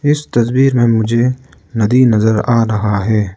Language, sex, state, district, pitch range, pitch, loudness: Hindi, male, Arunachal Pradesh, Lower Dibang Valley, 110-125 Hz, 115 Hz, -13 LUFS